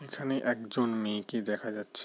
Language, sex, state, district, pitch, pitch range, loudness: Bengali, male, West Bengal, Jalpaiguri, 115 Hz, 105-130 Hz, -33 LUFS